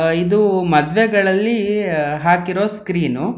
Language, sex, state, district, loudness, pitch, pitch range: Kannada, male, Karnataka, Mysore, -16 LUFS, 190 Hz, 170-205 Hz